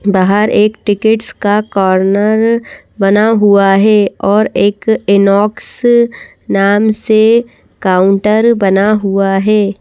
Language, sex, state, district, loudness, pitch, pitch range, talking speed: Hindi, female, Madhya Pradesh, Bhopal, -11 LUFS, 210 Hz, 195-220 Hz, 105 wpm